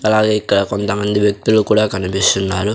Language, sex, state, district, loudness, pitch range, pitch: Telugu, male, Andhra Pradesh, Sri Satya Sai, -15 LUFS, 100-110 Hz, 105 Hz